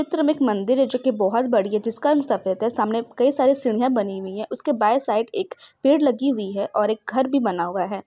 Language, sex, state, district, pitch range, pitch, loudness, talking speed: Hindi, female, Bihar, Saran, 210-270 Hz, 235 Hz, -21 LUFS, 260 wpm